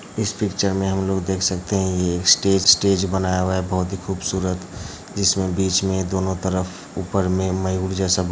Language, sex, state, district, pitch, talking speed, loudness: Hindi, male, Uttar Pradesh, Hamirpur, 95 Hz, 230 wpm, -20 LUFS